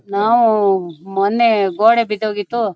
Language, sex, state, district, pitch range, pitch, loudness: Kannada, female, Karnataka, Shimoga, 200-225 Hz, 210 Hz, -15 LUFS